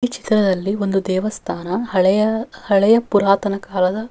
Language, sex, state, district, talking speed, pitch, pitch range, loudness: Kannada, female, Karnataka, Bellary, 115 wpm, 200 Hz, 195-220 Hz, -18 LUFS